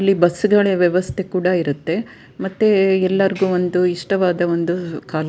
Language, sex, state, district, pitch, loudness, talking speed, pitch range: Kannada, female, Karnataka, Dakshina Kannada, 180 Hz, -18 LUFS, 145 wpm, 175-195 Hz